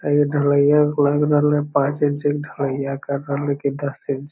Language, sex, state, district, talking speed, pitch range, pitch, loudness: Hindi, male, Bihar, Lakhisarai, 180 wpm, 140-145 Hz, 145 Hz, -20 LUFS